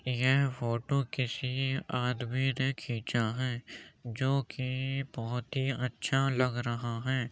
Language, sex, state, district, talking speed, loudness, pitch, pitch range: Hindi, male, Uttar Pradesh, Jyotiba Phule Nagar, 125 wpm, -32 LUFS, 130 Hz, 120-135 Hz